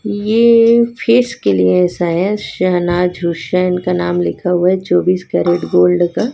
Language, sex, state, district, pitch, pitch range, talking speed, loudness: Hindi, female, Chhattisgarh, Raipur, 180 Hz, 165-205 Hz, 160 wpm, -14 LUFS